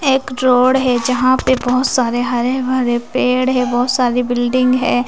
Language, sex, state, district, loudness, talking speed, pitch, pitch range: Hindi, female, Bihar, West Champaran, -15 LUFS, 175 wpm, 250 Hz, 245-255 Hz